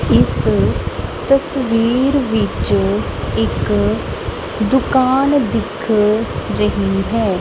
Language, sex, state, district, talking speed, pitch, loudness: Punjabi, female, Punjab, Kapurthala, 65 wpm, 210 Hz, -16 LUFS